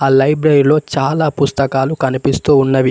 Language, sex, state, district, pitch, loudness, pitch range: Telugu, male, Telangana, Mahabubabad, 140 Hz, -14 LUFS, 135-150 Hz